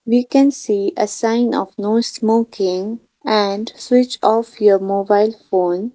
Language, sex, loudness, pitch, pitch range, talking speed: English, female, -17 LUFS, 220 Hz, 205-240 Hz, 140 wpm